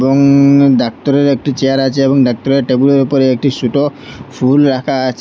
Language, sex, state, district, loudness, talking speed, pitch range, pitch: Bengali, male, Assam, Hailakandi, -12 LUFS, 160 wpm, 130-140 Hz, 135 Hz